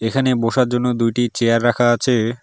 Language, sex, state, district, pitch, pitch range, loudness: Bengali, male, West Bengal, Alipurduar, 120 Hz, 115-125 Hz, -17 LUFS